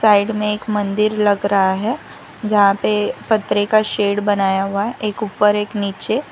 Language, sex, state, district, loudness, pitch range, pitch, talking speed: Hindi, female, Gujarat, Valsad, -18 LUFS, 200-215 Hz, 210 Hz, 180 wpm